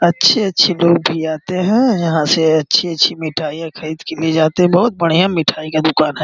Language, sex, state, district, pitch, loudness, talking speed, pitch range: Hindi, male, Uttar Pradesh, Gorakhpur, 165 Hz, -14 LUFS, 190 wpm, 155-180 Hz